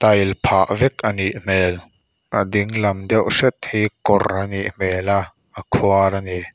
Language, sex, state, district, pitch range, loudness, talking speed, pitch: Mizo, male, Mizoram, Aizawl, 95-105 Hz, -19 LUFS, 175 wpm, 100 Hz